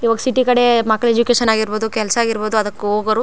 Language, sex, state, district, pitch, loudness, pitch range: Kannada, female, Karnataka, Chamarajanagar, 225 Hz, -16 LUFS, 215-235 Hz